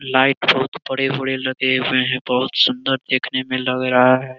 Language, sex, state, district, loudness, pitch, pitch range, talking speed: Hindi, male, Bihar, Jamui, -18 LUFS, 130 Hz, 130-135 Hz, 175 wpm